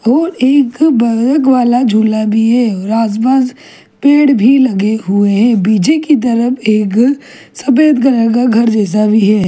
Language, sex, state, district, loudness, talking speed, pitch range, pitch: Hindi, female, Delhi, New Delhi, -11 LUFS, 160 wpm, 215-265 Hz, 240 Hz